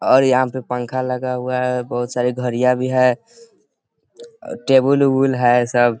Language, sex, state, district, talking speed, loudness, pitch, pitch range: Hindi, male, Bihar, East Champaran, 160 wpm, -17 LUFS, 125 Hz, 125-130 Hz